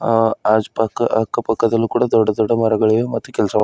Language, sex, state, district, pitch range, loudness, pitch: Kannada, male, Karnataka, Bidar, 110-115 Hz, -17 LUFS, 115 Hz